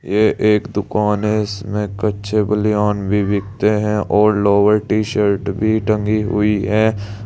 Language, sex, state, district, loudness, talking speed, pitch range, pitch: Hindi, male, Uttar Pradesh, Saharanpur, -17 LUFS, 150 wpm, 100-105 Hz, 105 Hz